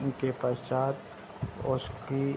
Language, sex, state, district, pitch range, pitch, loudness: Hindi, male, Bihar, Saharsa, 125-135 Hz, 130 Hz, -33 LUFS